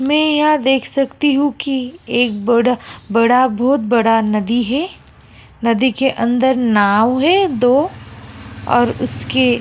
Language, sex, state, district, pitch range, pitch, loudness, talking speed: Hindi, female, Goa, North and South Goa, 235-275 Hz, 255 Hz, -15 LUFS, 135 wpm